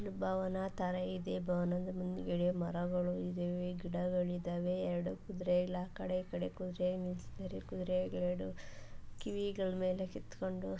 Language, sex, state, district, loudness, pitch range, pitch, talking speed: Kannada, female, Karnataka, Mysore, -38 LUFS, 175-185 Hz, 180 Hz, 115 wpm